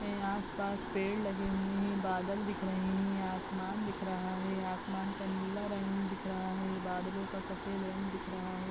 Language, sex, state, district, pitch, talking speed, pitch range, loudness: Hindi, female, Uttar Pradesh, Ghazipur, 195 Hz, 195 wpm, 190-195 Hz, -37 LUFS